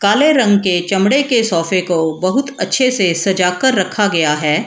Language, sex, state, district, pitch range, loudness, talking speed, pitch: Hindi, female, Bihar, Gaya, 175-250 Hz, -14 LUFS, 195 wpm, 195 Hz